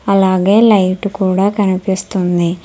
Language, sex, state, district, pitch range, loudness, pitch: Telugu, female, Telangana, Hyderabad, 185-200 Hz, -13 LUFS, 190 Hz